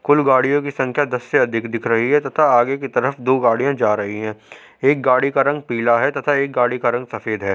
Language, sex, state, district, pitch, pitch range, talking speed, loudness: Hindi, male, Uttar Pradesh, Hamirpur, 130 Hz, 115-140 Hz, 255 wpm, -18 LUFS